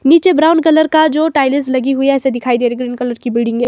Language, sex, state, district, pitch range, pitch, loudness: Hindi, female, Himachal Pradesh, Shimla, 245-315 Hz, 270 Hz, -13 LUFS